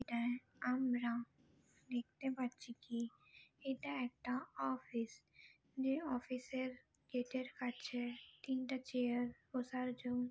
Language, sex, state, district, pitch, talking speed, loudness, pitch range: Bengali, female, West Bengal, Dakshin Dinajpur, 250 Hz, 100 wpm, -43 LUFS, 240-260 Hz